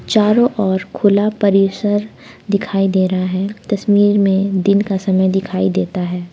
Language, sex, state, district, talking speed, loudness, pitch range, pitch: Hindi, female, Jharkhand, Palamu, 150 wpm, -15 LUFS, 190-205 Hz, 195 Hz